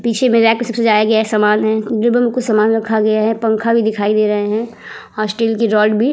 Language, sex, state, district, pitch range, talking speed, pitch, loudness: Hindi, female, Uttar Pradesh, Budaun, 215-230 Hz, 215 wpm, 220 Hz, -14 LUFS